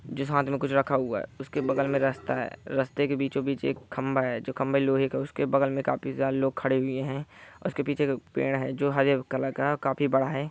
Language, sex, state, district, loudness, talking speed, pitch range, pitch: Hindi, male, Bihar, Saran, -28 LUFS, 255 wpm, 135-140 Hz, 135 Hz